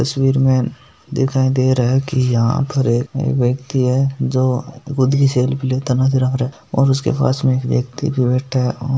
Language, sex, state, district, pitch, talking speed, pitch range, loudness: Marwari, male, Rajasthan, Nagaur, 130 Hz, 200 wpm, 130-135 Hz, -17 LUFS